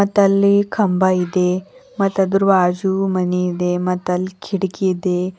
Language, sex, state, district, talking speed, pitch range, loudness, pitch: Kannada, female, Karnataka, Bidar, 110 wpm, 180-195 Hz, -18 LUFS, 185 Hz